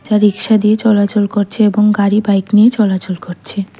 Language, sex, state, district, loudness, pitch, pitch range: Bengali, female, Tripura, West Tripura, -13 LUFS, 210 Hz, 200-215 Hz